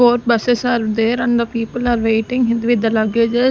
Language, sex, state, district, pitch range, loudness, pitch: English, female, Maharashtra, Gondia, 225-240 Hz, -16 LUFS, 235 Hz